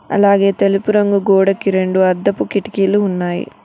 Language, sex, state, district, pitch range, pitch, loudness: Telugu, female, Telangana, Mahabubabad, 190-200 Hz, 195 Hz, -15 LUFS